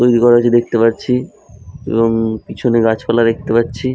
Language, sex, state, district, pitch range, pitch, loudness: Bengali, male, West Bengal, Jhargram, 115-120 Hz, 115 Hz, -14 LUFS